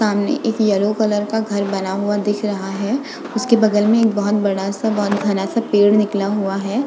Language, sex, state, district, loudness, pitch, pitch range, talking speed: Hindi, female, Uttar Pradesh, Budaun, -18 LUFS, 205 Hz, 200-220 Hz, 220 wpm